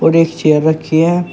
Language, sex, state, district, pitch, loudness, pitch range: Hindi, male, Uttar Pradesh, Shamli, 160 Hz, -13 LUFS, 155-170 Hz